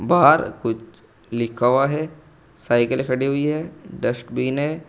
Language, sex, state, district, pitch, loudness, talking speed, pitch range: Hindi, male, Uttar Pradesh, Saharanpur, 135 Hz, -21 LUFS, 135 wpm, 120-155 Hz